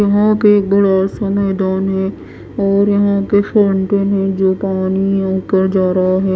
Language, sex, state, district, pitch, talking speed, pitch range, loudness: Hindi, female, Bihar, West Champaran, 195 Hz, 170 wpm, 190-200 Hz, -14 LUFS